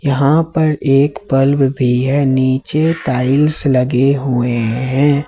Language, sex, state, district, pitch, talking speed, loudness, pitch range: Hindi, male, Jharkhand, Ranchi, 135 Hz, 135 wpm, -14 LUFS, 130-145 Hz